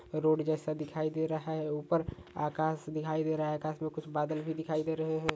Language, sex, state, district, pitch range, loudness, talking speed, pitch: Hindi, male, Rajasthan, Churu, 155-160 Hz, -34 LUFS, 235 wpm, 155 Hz